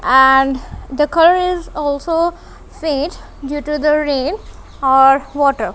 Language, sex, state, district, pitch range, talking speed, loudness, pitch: English, female, Punjab, Kapurthala, 270-330 Hz, 115 wpm, -15 LUFS, 290 Hz